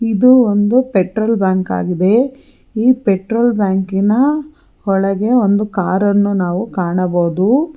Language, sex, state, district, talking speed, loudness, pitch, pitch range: Kannada, female, Karnataka, Bangalore, 100 wpm, -14 LUFS, 205 Hz, 190-240 Hz